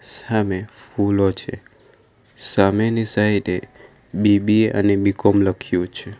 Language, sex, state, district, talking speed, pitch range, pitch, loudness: Gujarati, male, Gujarat, Valsad, 105 wpm, 100-105 Hz, 100 Hz, -19 LUFS